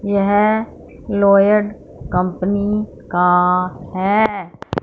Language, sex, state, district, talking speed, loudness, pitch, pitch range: Hindi, female, Punjab, Fazilka, 60 wpm, -17 LUFS, 200 Hz, 180-210 Hz